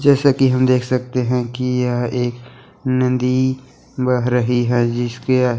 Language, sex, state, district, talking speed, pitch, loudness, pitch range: Hindi, female, Uttarakhand, Tehri Garhwal, 160 wpm, 125 Hz, -18 LUFS, 125-130 Hz